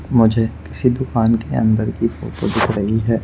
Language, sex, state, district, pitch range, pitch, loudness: Hindi, male, Madhya Pradesh, Bhopal, 110-115 Hz, 115 Hz, -18 LUFS